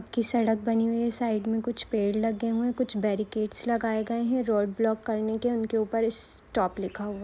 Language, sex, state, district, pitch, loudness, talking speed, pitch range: Hindi, female, Maharashtra, Aurangabad, 225 Hz, -28 LUFS, 215 wpm, 215-235 Hz